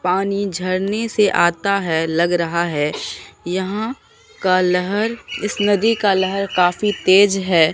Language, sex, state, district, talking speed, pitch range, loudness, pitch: Hindi, female, Bihar, Katihar, 140 wpm, 175-205 Hz, -18 LUFS, 190 Hz